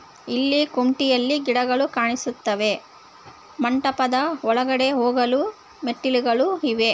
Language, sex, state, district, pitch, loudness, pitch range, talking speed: Kannada, female, Karnataka, Bellary, 255 Hz, -21 LUFS, 245-275 Hz, 70 wpm